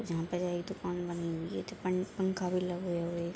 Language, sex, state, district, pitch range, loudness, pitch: Hindi, female, Bihar, East Champaran, 170-185 Hz, -35 LUFS, 175 Hz